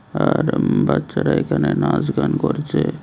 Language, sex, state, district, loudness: Bengali, male, Tripura, West Tripura, -19 LUFS